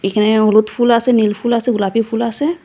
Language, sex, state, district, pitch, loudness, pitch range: Bengali, female, Assam, Hailakandi, 230 Hz, -14 LUFS, 215-240 Hz